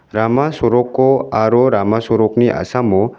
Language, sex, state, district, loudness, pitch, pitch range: Garo, male, Meghalaya, South Garo Hills, -14 LUFS, 120 Hz, 110-130 Hz